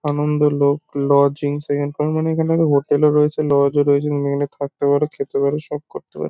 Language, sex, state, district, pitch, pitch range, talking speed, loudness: Bengali, male, West Bengal, North 24 Parganas, 145 Hz, 140-150 Hz, 190 wpm, -18 LUFS